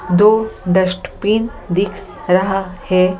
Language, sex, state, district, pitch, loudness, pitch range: Hindi, female, Delhi, New Delhi, 190 Hz, -16 LUFS, 180-205 Hz